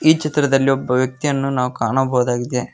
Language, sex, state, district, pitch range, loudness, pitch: Kannada, male, Karnataka, Koppal, 125-140 Hz, -18 LUFS, 130 Hz